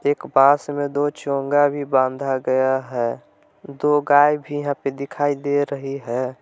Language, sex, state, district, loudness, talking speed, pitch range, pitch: Hindi, male, Jharkhand, Palamu, -20 LUFS, 170 wpm, 135-145 Hz, 140 Hz